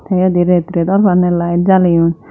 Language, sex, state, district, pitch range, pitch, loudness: Chakma, female, Tripura, Dhalai, 170-185 Hz, 180 Hz, -12 LUFS